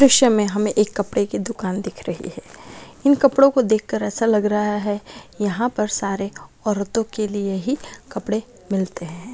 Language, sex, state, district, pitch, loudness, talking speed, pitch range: Maithili, female, Bihar, Darbhanga, 210 Hz, -21 LUFS, 180 wpm, 205-230 Hz